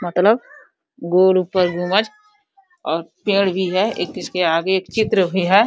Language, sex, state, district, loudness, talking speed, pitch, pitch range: Hindi, female, Uttar Pradesh, Deoria, -18 LUFS, 160 wpm, 190 Hz, 180-215 Hz